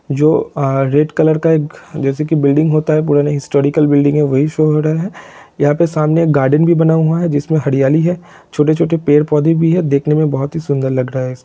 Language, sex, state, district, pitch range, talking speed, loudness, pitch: Hindi, male, Jharkhand, Sahebganj, 145-160 Hz, 240 wpm, -13 LUFS, 150 Hz